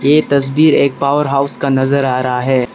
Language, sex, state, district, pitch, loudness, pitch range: Hindi, male, Arunachal Pradesh, Lower Dibang Valley, 140 Hz, -13 LUFS, 130-140 Hz